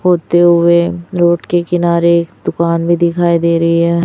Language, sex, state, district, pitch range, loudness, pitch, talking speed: Hindi, female, Chhattisgarh, Raipur, 170-175 Hz, -12 LUFS, 170 Hz, 165 wpm